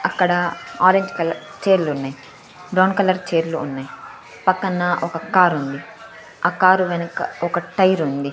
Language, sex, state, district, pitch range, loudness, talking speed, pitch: Telugu, female, Andhra Pradesh, Sri Satya Sai, 165-185 Hz, -19 LUFS, 150 wpm, 175 Hz